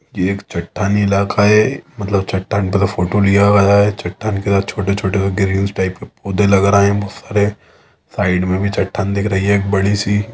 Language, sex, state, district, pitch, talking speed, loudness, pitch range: Hindi, male, Chhattisgarh, Sukma, 100 Hz, 210 wpm, -16 LUFS, 95-100 Hz